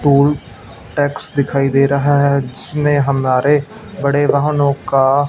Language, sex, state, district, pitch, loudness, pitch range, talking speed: Hindi, male, Punjab, Fazilka, 140 Hz, -15 LUFS, 135-145 Hz, 125 wpm